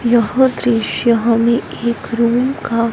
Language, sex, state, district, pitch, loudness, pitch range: Hindi, female, Punjab, Fazilka, 235 Hz, -15 LUFS, 230-240 Hz